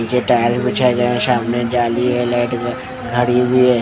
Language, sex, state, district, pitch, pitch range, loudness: Hindi, male, Odisha, Khordha, 120 Hz, 120-125 Hz, -16 LUFS